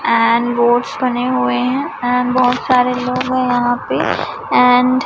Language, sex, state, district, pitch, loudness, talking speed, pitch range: Hindi, male, Chhattisgarh, Raipur, 245 Hz, -15 LUFS, 165 wpm, 240-255 Hz